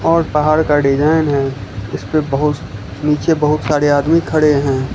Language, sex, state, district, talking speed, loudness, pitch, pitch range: Hindi, male, Gujarat, Valsad, 155 wpm, -15 LUFS, 150 Hz, 140-155 Hz